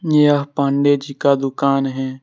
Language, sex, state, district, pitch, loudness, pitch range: Hindi, male, Jharkhand, Deoghar, 140 Hz, -17 LUFS, 135-145 Hz